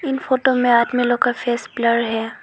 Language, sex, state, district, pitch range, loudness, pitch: Hindi, female, Arunachal Pradesh, Lower Dibang Valley, 235-260 Hz, -18 LUFS, 245 Hz